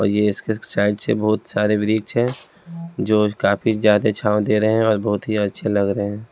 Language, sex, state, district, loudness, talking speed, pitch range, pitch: Hindi, male, Delhi, New Delhi, -19 LUFS, 220 wpm, 105-110 Hz, 105 Hz